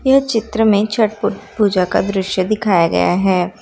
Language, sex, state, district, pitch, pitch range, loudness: Hindi, female, Bihar, Darbhanga, 205 Hz, 185-220 Hz, -16 LUFS